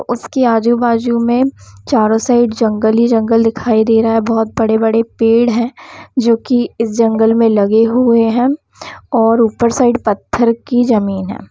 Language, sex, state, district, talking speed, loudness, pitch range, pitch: Hindi, female, Bihar, Samastipur, 160 wpm, -13 LUFS, 225-240 Hz, 230 Hz